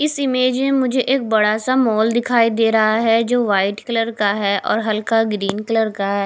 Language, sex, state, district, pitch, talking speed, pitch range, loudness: Hindi, female, Punjab, Kapurthala, 225 Hz, 220 wpm, 215-245 Hz, -17 LUFS